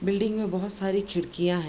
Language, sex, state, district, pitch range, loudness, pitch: Hindi, female, Bihar, Darbhanga, 175-200 Hz, -28 LUFS, 195 Hz